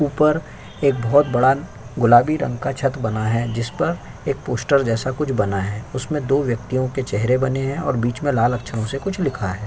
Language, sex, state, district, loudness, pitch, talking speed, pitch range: Hindi, male, Uttar Pradesh, Jyotiba Phule Nagar, -20 LUFS, 130 Hz, 205 wpm, 115-140 Hz